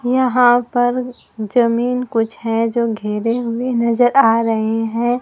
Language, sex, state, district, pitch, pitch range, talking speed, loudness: Hindi, female, Bihar, Kaimur, 235 Hz, 225-245 Hz, 140 wpm, -16 LUFS